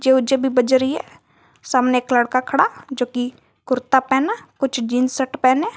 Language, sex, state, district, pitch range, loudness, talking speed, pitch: Hindi, female, Jharkhand, Garhwa, 250-270 Hz, -19 LUFS, 175 wpm, 260 Hz